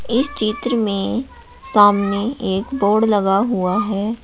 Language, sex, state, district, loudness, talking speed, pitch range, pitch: Hindi, male, Uttar Pradesh, Shamli, -18 LUFS, 125 wpm, 205-245 Hz, 215 Hz